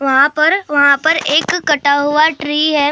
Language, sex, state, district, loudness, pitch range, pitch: Hindi, male, Maharashtra, Gondia, -13 LUFS, 285-310 Hz, 295 Hz